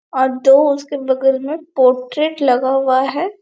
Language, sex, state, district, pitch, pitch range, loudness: Hindi, female, Chhattisgarh, Bastar, 270 Hz, 260-290 Hz, -15 LUFS